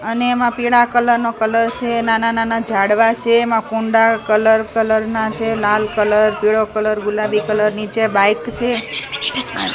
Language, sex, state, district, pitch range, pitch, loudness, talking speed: Gujarati, female, Gujarat, Gandhinagar, 215-230 Hz, 220 Hz, -16 LUFS, 160 wpm